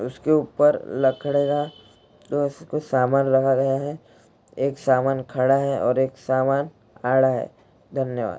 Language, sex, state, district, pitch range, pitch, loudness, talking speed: Hindi, male, Bihar, Jahanabad, 130-145 Hz, 135 Hz, -22 LUFS, 145 wpm